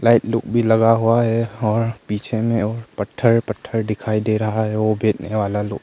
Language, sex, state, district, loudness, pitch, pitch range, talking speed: Hindi, male, Arunachal Pradesh, Longding, -19 LUFS, 110 Hz, 110-115 Hz, 215 wpm